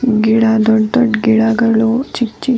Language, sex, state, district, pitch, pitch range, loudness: Kannada, female, Karnataka, Dharwad, 225 Hz, 220-240 Hz, -13 LUFS